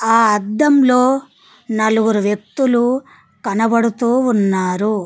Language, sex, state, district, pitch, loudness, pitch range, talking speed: Telugu, female, Telangana, Mahabubabad, 225 Hz, -15 LUFS, 210-250 Hz, 85 wpm